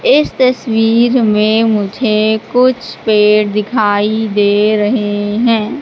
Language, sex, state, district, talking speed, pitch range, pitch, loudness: Hindi, female, Madhya Pradesh, Katni, 105 wpm, 210-235 Hz, 220 Hz, -12 LUFS